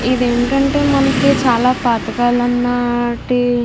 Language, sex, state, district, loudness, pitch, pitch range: Telugu, female, Andhra Pradesh, Krishna, -15 LUFS, 245 Hz, 240-270 Hz